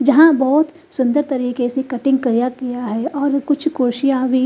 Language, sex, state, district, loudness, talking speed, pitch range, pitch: Hindi, female, Chandigarh, Chandigarh, -17 LUFS, 175 wpm, 250-285 Hz, 265 Hz